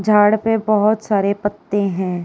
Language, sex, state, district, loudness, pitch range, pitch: Hindi, female, Uttar Pradesh, Jyotiba Phule Nagar, -17 LUFS, 200-215 Hz, 205 Hz